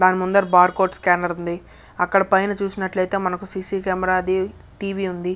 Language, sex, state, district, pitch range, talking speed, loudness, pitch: Telugu, male, Andhra Pradesh, Chittoor, 180-195 Hz, 180 wpm, -20 LUFS, 185 Hz